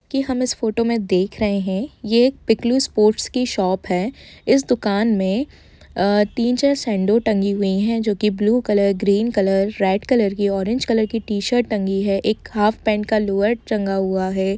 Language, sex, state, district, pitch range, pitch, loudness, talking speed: Hindi, female, Jharkhand, Jamtara, 200-230 Hz, 210 Hz, -19 LUFS, 200 wpm